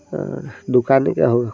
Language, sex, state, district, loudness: Hindi, male, Bihar, Saran, -18 LUFS